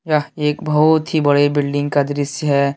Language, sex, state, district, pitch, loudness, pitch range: Hindi, male, Jharkhand, Deoghar, 145 Hz, -17 LUFS, 145-155 Hz